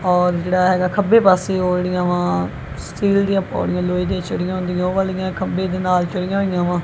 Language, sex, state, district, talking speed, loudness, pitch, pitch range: Punjabi, female, Punjab, Kapurthala, 210 wpm, -18 LUFS, 180 Hz, 180-190 Hz